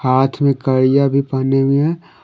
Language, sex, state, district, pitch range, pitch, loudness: Hindi, male, Jharkhand, Deoghar, 130-140 Hz, 135 Hz, -15 LUFS